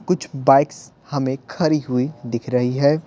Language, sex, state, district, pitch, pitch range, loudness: Hindi, male, Bihar, Patna, 140 Hz, 130-150 Hz, -20 LUFS